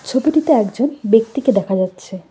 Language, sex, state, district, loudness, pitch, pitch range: Bengali, female, West Bengal, Cooch Behar, -16 LUFS, 225 Hz, 195-275 Hz